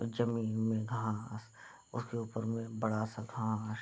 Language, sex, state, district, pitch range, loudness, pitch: Hindi, male, Bihar, Bhagalpur, 110-115 Hz, -37 LUFS, 110 Hz